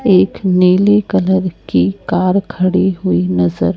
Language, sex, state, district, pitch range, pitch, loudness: Hindi, male, Chhattisgarh, Raipur, 180-190 Hz, 185 Hz, -14 LUFS